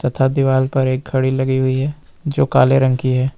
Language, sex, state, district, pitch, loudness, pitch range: Hindi, male, Jharkhand, Ranchi, 130 Hz, -17 LUFS, 130-135 Hz